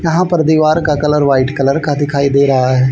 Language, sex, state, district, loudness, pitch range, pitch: Hindi, male, Haryana, Charkhi Dadri, -12 LUFS, 135-155 Hz, 145 Hz